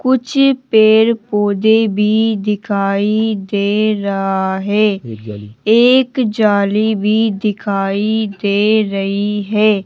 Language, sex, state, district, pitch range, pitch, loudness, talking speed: Hindi, male, Rajasthan, Jaipur, 200-220 Hz, 210 Hz, -14 LUFS, 90 wpm